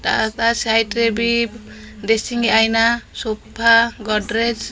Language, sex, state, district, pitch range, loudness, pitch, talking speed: Odia, female, Odisha, Khordha, 220-235 Hz, -17 LUFS, 225 Hz, 125 wpm